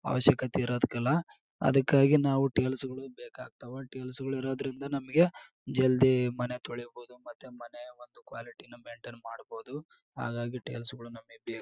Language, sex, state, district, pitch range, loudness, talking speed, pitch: Kannada, male, Karnataka, Bellary, 120-135 Hz, -30 LUFS, 120 wpm, 130 Hz